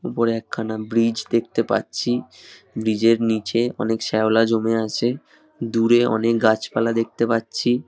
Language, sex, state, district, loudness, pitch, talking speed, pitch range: Bengali, male, West Bengal, Dakshin Dinajpur, -21 LUFS, 115 Hz, 130 wpm, 110-115 Hz